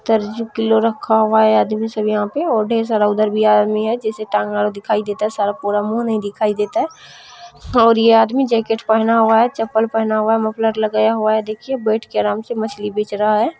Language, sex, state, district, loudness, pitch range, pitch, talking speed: Maithili, female, Bihar, Supaul, -17 LUFS, 215-225 Hz, 220 Hz, 225 wpm